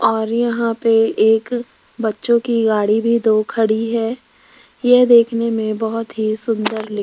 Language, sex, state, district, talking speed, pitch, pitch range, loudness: Hindi, female, Rajasthan, Jaipur, 160 wpm, 225 Hz, 220-235 Hz, -16 LUFS